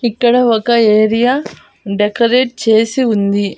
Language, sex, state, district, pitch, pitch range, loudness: Telugu, female, Andhra Pradesh, Annamaya, 230 Hz, 215-245 Hz, -13 LUFS